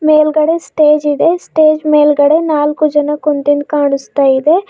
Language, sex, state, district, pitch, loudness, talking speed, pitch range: Kannada, female, Karnataka, Bidar, 300 Hz, -11 LUFS, 130 wpm, 290-310 Hz